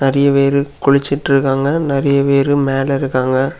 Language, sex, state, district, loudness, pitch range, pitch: Tamil, male, Tamil Nadu, Kanyakumari, -14 LUFS, 135-140 Hz, 140 Hz